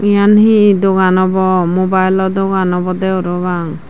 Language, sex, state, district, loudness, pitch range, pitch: Chakma, female, Tripura, Dhalai, -12 LUFS, 180-195 Hz, 185 Hz